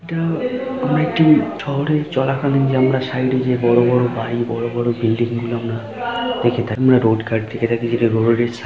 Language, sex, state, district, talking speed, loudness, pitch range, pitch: Bengali, male, West Bengal, Kolkata, 195 wpm, -18 LUFS, 115-140 Hz, 120 Hz